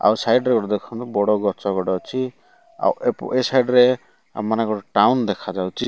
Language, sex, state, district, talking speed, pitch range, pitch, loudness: Odia, male, Odisha, Malkangiri, 185 wpm, 100-125 Hz, 110 Hz, -20 LUFS